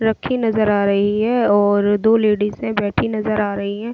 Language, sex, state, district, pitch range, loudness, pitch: Hindi, female, Delhi, New Delhi, 205-220 Hz, -17 LUFS, 210 Hz